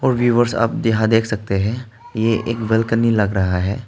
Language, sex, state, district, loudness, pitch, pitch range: Hindi, male, Arunachal Pradesh, Lower Dibang Valley, -18 LUFS, 115 Hz, 110-115 Hz